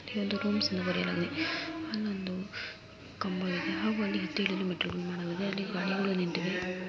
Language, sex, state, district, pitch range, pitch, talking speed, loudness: Kannada, female, Karnataka, Mysore, 180-210 Hz, 195 Hz, 105 wpm, -33 LUFS